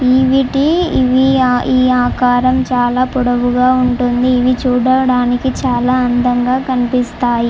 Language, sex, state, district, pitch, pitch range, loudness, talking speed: Telugu, female, Andhra Pradesh, Chittoor, 255 Hz, 245-260 Hz, -13 LUFS, 120 wpm